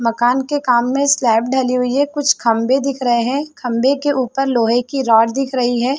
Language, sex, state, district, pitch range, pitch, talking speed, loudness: Hindi, female, Chhattisgarh, Sarguja, 240-275 Hz, 255 Hz, 220 wpm, -16 LUFS